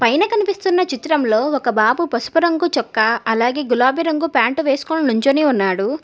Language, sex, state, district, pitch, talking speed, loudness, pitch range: Telugu, female, Telangana, Hyderabad, 280 Hz, 150 wpm, -17 LUFS, 235-330 Hz